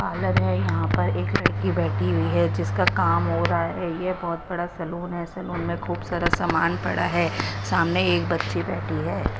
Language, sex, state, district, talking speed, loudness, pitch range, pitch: Hindi, female, Odisha, Nuapada, 200 wpm, -24 LUFS, 90-110 Hz, 100 Hz